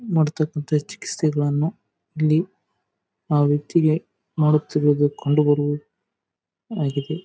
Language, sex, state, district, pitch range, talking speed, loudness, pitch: Kannada, male, Karnataka, Raichur, 145-160 Hz, 75 wpm, -21 LUFS, 150 Hz